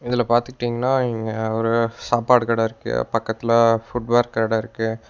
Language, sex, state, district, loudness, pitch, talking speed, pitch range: Tamil, male, Tamil Nadu, Nilgiris, -21 LUFS, 115 Hz, 130 wpm, 110-120 Hz